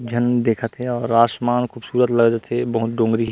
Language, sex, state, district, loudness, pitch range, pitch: Chhattisgarhi, male, Chhattisgarh, Rajnandgaon, -19 LUFS, 115-120 Hz, 120 Hz